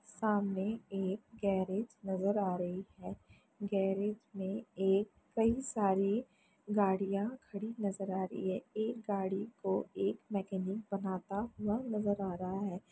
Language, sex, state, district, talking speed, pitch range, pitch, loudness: Hindi, female, Bihar, Jamui, 135 wpm, 190-210 Hz, 200 Hz, -36 LUFS